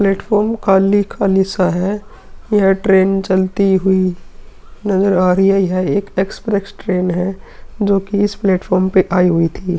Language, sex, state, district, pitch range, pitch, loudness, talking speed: Hindi, male, Uttar Pradesh, Hamirpur, 185-200 Hz, 195 Hz, -15 LUFS, 155 wpm